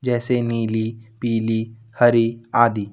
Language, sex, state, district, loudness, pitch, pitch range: Hindi, male, Jharkhand, Ranchi, -20 LUFS, 115 Hz, 115-120 Hz